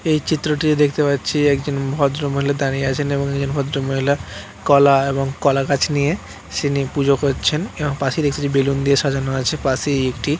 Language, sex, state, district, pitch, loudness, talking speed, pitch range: Bengali, male, West Bengal, Purulia, 140 Hz, -19 LUFS, 190 wpm, 135-145 Hz